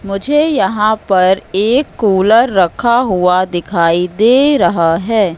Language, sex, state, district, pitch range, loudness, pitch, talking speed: Hindi, female, Madhya Pradesh, Katni, 180-230 Hz, -12 LUFS, 195 Hz, 125 wpm